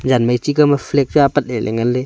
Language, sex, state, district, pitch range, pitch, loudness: Wancho, male, Arunachal Pradesh, Longding, 120-145 Hz, 130 Hz, -16 LUFS